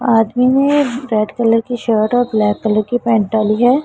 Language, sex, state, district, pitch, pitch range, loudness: Hindi, female, Punjab, Pathankot, 230 Hz, 215-245 Hz, -15 LUFS